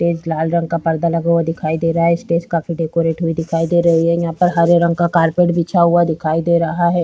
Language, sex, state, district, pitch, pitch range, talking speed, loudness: Hindi, female, Bihar, Vaishali, 170 Hz, 165-170 Hz, 290 wpm, -16 LUFS